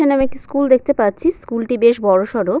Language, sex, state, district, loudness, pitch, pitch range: Bengali, female, West Bengal, Paschim Medinipur, -16 LUFS, 245 Hz, 215-280 Hz